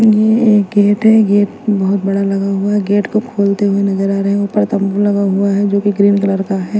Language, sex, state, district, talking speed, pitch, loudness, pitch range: Hindi, female, Chandigarh, Chandigarh, 255 wpm, 200 Hz, -13 LUFS, 195-205 Hz